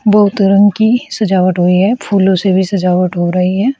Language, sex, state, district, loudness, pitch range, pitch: Hindi, female, Uttar Pradesh, Shamli, -12 LUFS, 185-210 Hz, 195 Hz